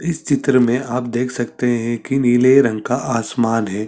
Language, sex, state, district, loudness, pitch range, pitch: Hindi, male, Chhattisgarh, Sarguja, -17 LUFS, 115-130 Hz, 120 Hz